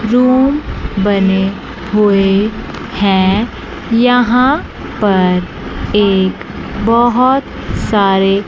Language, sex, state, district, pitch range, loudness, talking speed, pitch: Hindi, female, Chandigarh, Chandigarh, 195-240 Hz, -13 LUFS, 65 wpm, 205 Hz